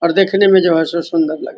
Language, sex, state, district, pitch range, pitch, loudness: Hindi, male, Bihar, Vaishali, 165-190 Hz, 170 Hz, -13 LUFS